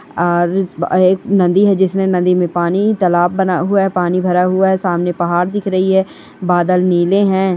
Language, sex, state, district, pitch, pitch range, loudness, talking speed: Hindi, female, West Bengal, Purulia, 185 Hz, 175-190 Hz, -14 LUFS, 205 wpm